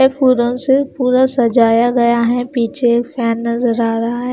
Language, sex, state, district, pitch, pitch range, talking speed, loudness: Hindi, female, Himachal Pradesh, Shimla, 240 Hz, 235-255 Hz, 195 wpm, -14 LUFS